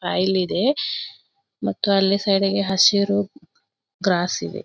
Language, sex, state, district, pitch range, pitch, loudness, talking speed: Kannada, female, Karnataka, Belgaum, 185-200 Hz, 195 Hz, -20 LUFS, 105 wpm